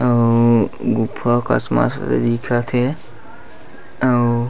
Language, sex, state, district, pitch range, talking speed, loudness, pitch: Chhattisgarhi, male, Chhattisgarh, Bastar, 115-125 Hz, 95 wpm, -18 LUFS, 120 Hz